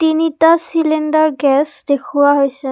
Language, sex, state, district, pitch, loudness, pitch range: Assamese, female, Assam, Kamrup Metropolitan, 300 Hz, -14 LUFS, 285-320 Hz